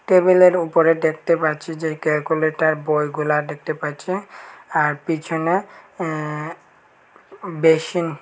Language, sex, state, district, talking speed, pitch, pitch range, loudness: Bengali, male, Tripura, Unakoti, 100 wpm, 160 Hz, 150-170 Hz, -20 LUFS